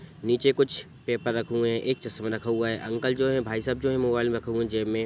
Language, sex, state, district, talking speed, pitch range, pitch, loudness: Hindi, male, Bihar, Sitamarhi, 285 wpm, 115-130 Hz, 120 Hz, -27 LUFS